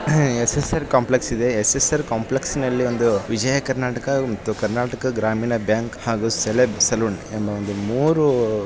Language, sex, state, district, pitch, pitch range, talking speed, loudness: Kannada, male, Karnataka, Shimoga, 120 Hz, 110-130 Hz, 125 wpm, -20 LUFS